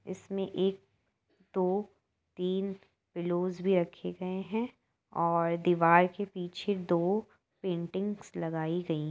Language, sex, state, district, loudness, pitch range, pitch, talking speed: Hindi, female, Uttar Pradesh, Etah, -32 LUFS, 170-195 Hz, 185 Hz, 120 wpm